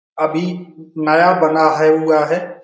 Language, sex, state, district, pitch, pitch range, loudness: Hindi, male, Bihar, Saran, 160 Hz, 155-175 Hz, -15 LUFS